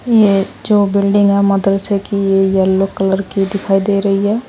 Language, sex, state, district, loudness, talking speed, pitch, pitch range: Hindi, female, Uttar Pradesh, Saharanpur, -14 LUFS, 185 wpm, 200 Hz, 195-200 Hz